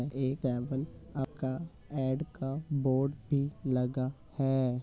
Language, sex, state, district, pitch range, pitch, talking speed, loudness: Hindi, male, Uttar Pradesh, Hamirpur, 130-140 Hz, 135 Hz, 85 wpm, -33 LUFS